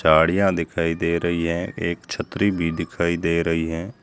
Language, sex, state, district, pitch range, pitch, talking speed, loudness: Hindi, male, Rajasthan, Jaisalmer, 85-90 Hz, 85 Hz, 180 wpm, -22 LUFS